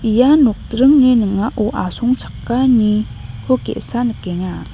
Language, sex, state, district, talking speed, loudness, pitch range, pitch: Garo, female, Meghalaya, North Garo Hills, 75 wpm, -15 LUFS, 185-250 Hz, 225 Hz